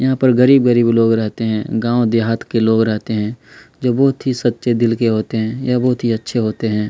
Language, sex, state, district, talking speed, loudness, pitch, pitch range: Hindi, male, Chhattisgarh, Kabirdham, 225 wpm, -16 LUFS, 115 Hz, 110-125 Hz